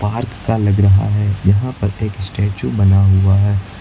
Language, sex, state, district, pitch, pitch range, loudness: Hindi, male, Uttar Pradesh, Lucknow, 100 Hz, 100-105 Hz, -15 LUFS